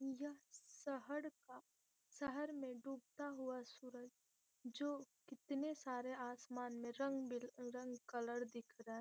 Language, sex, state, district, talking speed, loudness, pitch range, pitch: Hindi, female, Bihar, Gopalganj, 135 wpm, -49 LUFS, 245-280 Hz, 255 Hz